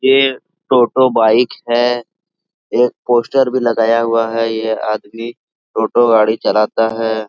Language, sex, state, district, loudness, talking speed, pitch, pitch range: Hindi, male, Jharkhand, Sahebganj, -14 LUFS, 130 wpm, 115 Hz, 110-125 Hz